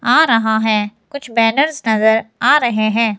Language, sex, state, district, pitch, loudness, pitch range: Hindi, female, Himachal Pradesh, Shimla, 225 Hz, -14 LUFS, 220-250 Hz